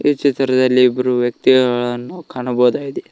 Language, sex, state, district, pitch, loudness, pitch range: Kannada, male, Karnataka, Koppal, 125 Hz, -16 LUFS, 125-135 Hz